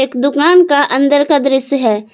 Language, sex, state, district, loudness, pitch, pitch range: Hindi, female, Jharkhand, Palamu, -11 LUFS, 280 Hz, 265-290 Hz